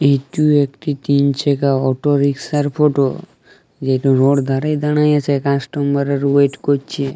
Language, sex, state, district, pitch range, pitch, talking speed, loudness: Bengali, male, Jharkhand, Jamtara, 135-145 Hz, 140 Hz, 135 wpm, -16 LUFS